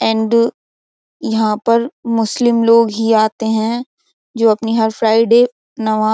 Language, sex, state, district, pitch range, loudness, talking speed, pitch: Hindi, female, Uttar Pradesh, Jyotiba Phule Nagar, 220-235 Hz, -15 LUFS, 135 wpm, 225 Hz